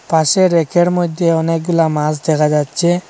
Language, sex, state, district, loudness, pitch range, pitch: Bengali, male, Assam, Hailakandi, -14 LUFS, 155-175 Hz, 165 Hz